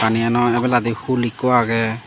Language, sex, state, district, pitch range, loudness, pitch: Chakma, male, Tripura, Dhalai, 115-120 Hz, -18 LUFS, 120 Hz